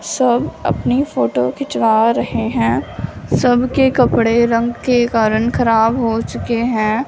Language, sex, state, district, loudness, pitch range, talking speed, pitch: Hindi, female, Punjab, Fazilka, -16 LUFS, 225-250 Hz, 125 wpm, 235 Hz